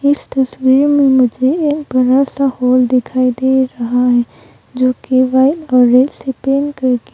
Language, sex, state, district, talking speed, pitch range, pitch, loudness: Hindi, female, Arunachal Pradesh, Longding, 160 wpm, 250-275 Hz, 260 Hz, -13 LUFS